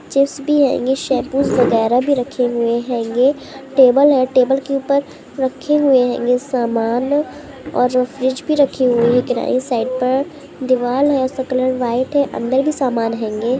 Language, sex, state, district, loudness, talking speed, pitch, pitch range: Hindi, female, Uttar Pradesh, Gorakhpur, -16 LUFS, 165 wpm, 260 Hz, 245-275 Hz